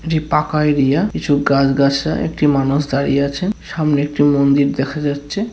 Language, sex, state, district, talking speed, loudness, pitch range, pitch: Bengali, male, West Bengal, Paschim Medinipur, 150 wpm, -16 LUFS, 140-150 Hz, 145 Hz